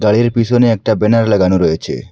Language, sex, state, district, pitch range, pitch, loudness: Bengali, male, Assam, Hailakandi, 105-115 Hz, 110 Hz, -13 LUFS